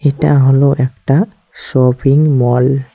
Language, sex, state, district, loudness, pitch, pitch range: Bengali, male, West Bengal, Cooch Behar, -12 LUFS, 135 Hz, 130-145 Hz